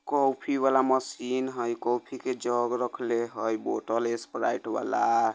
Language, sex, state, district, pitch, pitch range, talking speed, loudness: Bajjika, male, Bihar, Vaishali, 125 Hz, 115-130 Hz, 145 wpm, -28 LUFS